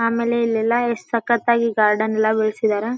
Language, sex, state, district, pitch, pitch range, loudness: Kannada, female, Karnataka, Dharwad, 230 Hz, 220-235 Hz, -19 LUFS